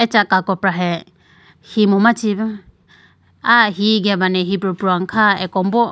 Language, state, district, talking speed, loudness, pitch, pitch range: Idu Mishmi, Arunachal Pradesh, Lower Dibang Valley, 130 wpm, -16 LUFS, 195 Hz, 185-215 Hz